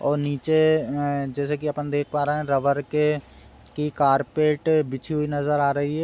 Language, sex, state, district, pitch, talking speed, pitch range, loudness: Hindi, male, Bihar, Sitamarhi, 145 Hz, 180 wpm, 140-150 Hz, -23 LUFS